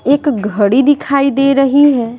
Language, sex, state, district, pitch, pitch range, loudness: Hindi, female, Bihar, Patna, 275 Hz, 240-285 Hz, -12 LUFS